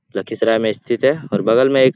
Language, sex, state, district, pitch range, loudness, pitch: Hindi, male, Bihar, Lakhisarai, 110-135 Hz, -17 LUFS, 120 Hz